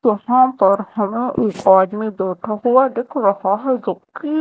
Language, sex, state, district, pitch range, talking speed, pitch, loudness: Hindi, female, Madhya Pradesh, Dhar, 195-255 Hz, 165 wpm, 215 Hz, -17 LUFS